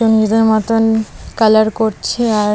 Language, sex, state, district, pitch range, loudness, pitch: Bengali, female, West Bengal, Kolkata, 215-225 Hz, -14 LUFS, 220 Hz